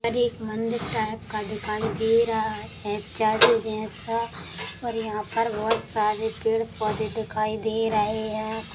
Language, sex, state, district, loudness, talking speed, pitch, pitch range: Hindi, female, Chhattisgarh, Sukma, -26 LUFS, 165 wpm, 220 Hz, 215-225 Hz